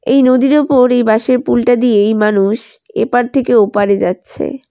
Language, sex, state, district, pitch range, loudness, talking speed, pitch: Bengali, female, West Bengal, Alipurduar, 215-260 Hz, -12 LUFS, 155 wpm, 245 Hz